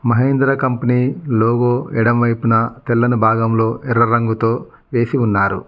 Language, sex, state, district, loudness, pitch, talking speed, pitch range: Telugu, male, Telangana, Mahabubabad, -16 LUFS, 120 Hz, 105 wpm, 115-125 Hz